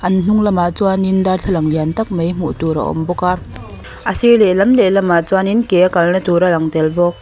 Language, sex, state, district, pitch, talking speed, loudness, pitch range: Mizo, female, Mizoram, Aizawl, 180 Hz, 235 wpm, -14 LUFS, 170-195 Hz